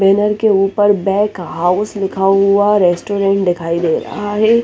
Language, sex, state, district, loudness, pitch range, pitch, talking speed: Hindi, female, Chandigarh, Chandigarh, -14 LUFS, 190-205 Hz, 195 Hz, 170 wpm